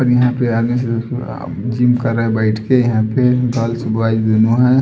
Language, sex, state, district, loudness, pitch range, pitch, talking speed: Hindi, male, Odisha, Sambalpur, -16 LUFS, 115-125 Hz, 120 Hz, 210 wpm